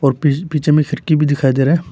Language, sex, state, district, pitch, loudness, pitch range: Hindi, male, Arunachal Pradesh, Papum Pare, 150 Hz, -15 LUFS, 140-155 Hz